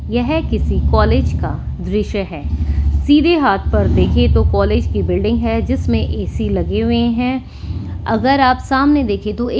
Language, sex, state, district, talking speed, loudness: Hindi, female, Delhi, New Delhi, 160 wpm, -16 LUFS